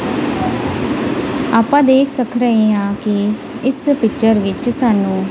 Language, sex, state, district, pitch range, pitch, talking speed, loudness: Punjabi, female, Punjab, Kapurthala, 210-265 Hz, 230 Hz, 115 wpm, -15 LUFS